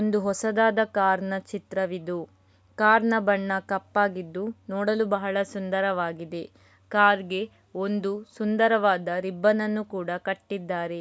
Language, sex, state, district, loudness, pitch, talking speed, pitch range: Kannada, female, Karnataka, Dakshina Kannada, -26 LUFS, 195 Hz, 85 wpm, 185-210 Hz